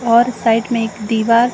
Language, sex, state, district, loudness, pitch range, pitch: Hindi, female, Chhattisgarh, Raigarh, -16 LUFS, 225-240 Hz, 230 Hz